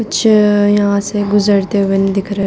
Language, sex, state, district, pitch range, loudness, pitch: Hindi, female, Bihar, Darbhanga, 200-205 Hz, -13 LUFS, 205 Hz